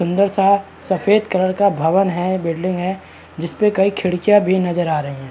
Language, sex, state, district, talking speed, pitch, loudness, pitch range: Hindi, male, Bihar, Araria, 205 wpm, 185 Hz, -17 LUFS, 175-195 Hz